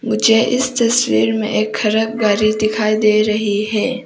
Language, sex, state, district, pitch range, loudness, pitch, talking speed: Hindi, female, Arunachal Pradesh, Papum Pare, 210-225 Hz, -15 LUFS, 215 Hz, 160 wpm